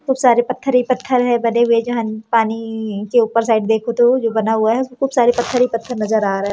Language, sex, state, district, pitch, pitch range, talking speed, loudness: Hindi, female, Madhya Pradesh, Umaria, 235 Hz, 220-250 Hz, 255 wpm, -16 LUFS